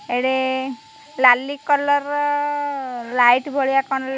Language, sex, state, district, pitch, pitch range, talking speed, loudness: Odia, female, Odisha, Khordha, 270 Hz, 260-290 Hz, 115 wpm, -19 LUFS